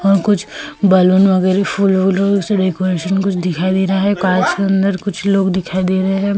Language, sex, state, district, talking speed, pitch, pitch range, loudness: Hindi, female, Goa, North and South Goa, 190 wpm, 190 Hz, 185-195 Hz, -15 LUFS